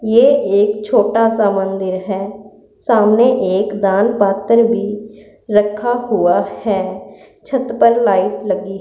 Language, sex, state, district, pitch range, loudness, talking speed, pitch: Hindi, female, Punjab, Pathankot, 195-230 Hz, -15 LUFS, 120 wpm, 210 Hz